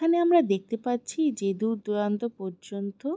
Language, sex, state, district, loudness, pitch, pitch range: Bengali, female, West Bengal, Jalpaiguri, -27 LUFS, 225 Hz, 200-295 Hz